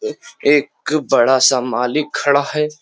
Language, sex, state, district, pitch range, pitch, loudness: Hindi, male, Uttar Pradesh, Jyotiba Phule Nagar, 130-150 Hz, 145 Hz, -16 LUFS